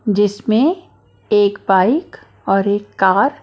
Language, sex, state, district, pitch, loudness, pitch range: Hindi, female, Maharashtra, Mumbai Suburban, 205 Hz, -16 LUFS, 200-280 Hz